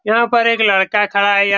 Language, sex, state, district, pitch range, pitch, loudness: Hindi, male, Bihar, Saran, 200-230 Hz, 205 Hz, -14 LUFS